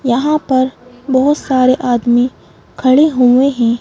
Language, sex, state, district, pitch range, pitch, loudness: Hindi, female, Madhya Pradesh, Bhopal, 245-270 Hz, 255 Hz, -13 LUFS